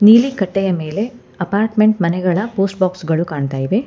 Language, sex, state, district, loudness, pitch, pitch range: Kannada, female, Karnataka, Bangalore, -17 LUFS, 195 Hz, 175-215 Hz